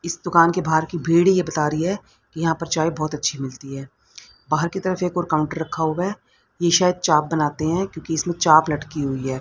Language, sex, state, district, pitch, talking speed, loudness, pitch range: Hindi, female, Haryana, Rohtak, 160 Hz, 240 wpm, -21 LUFS, 155-175 Hz